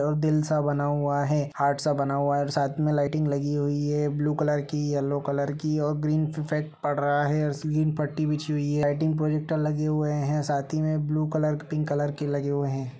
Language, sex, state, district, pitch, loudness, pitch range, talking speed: Hindi, male, Uttar Pradesh, Budaun, 150 Hz, -26 LUFS, 145-150 Hz, 230 wpm